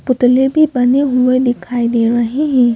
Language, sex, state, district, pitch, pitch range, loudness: Hindi, female, Madhya Pradesh, Bhopal, 250 Hz, 240-265 Hz, -13 LUFS